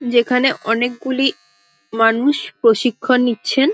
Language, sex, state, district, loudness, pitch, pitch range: Bengali, female, West Bengal, Dakshin Dinajpur, -17 LUFS, 245 Hz, 225-260 Hz